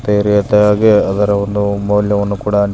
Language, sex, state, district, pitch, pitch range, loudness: Kannada, male, Karnataka, Belgaum, 105 Hz, 100-105 Hz, -13 LUFS